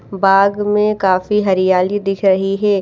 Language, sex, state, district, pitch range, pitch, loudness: Hindi, female, Odisha, Malkangiri, 190-205 Hz, 195 Hz, -15 LUFS